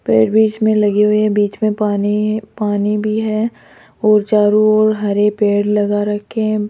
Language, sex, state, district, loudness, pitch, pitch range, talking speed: Hindi, female, Rajasthan, Jaipur, -15 LUFS, 210 Hz, 205-215 Hz, 180 wpm